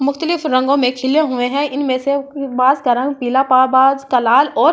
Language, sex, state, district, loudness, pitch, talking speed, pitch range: Hindi, female, Delhi, New Delhi, -15 LUFS, 270 Hz, 230 wpm, 255-280 Hz